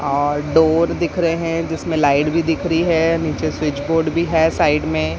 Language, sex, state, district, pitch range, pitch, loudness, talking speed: Hindi, female, Maharashtra, Mumbai Suburban, 150-165 Hz, 160 Hz, -17 LUFS, 210 wpm